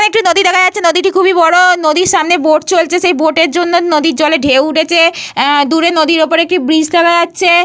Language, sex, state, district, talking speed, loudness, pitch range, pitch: Bengali, female, Jharkhand, Jamtara, 220 wpm, -10 LUFS, 315-360 Hz, 335 Hz